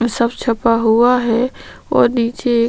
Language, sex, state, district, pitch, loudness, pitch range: Hindi, female, Chhattisgarh, Sukma, 235 Hz, -15 LUFS, 230-245 Hz